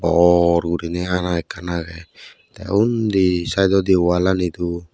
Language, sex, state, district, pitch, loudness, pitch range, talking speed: Chakma, male, Tripura, West Tripura, 90 Hz, -18 LUFS, 85-95 Hz, 120 wpm